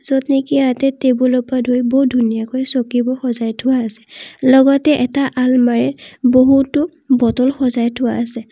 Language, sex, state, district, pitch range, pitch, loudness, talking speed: Assamese, female, Assam, Kamrup Metropolitan, 245-270 Hz, 255 Hz, -15 LUFS, 135 wpm